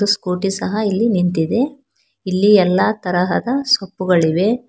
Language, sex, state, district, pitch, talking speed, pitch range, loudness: Kannada, female, Karnataka, Bangalore, 195 Hz, 100 wpm, 180-220 Hz, -17 LUFS